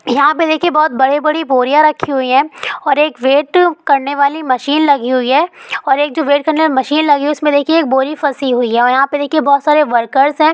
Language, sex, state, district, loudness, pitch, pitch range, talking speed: Hindi, female, Bihar, Supaul, -12 LUFS, 290 Hz, 270-310 Hz, 245 wpm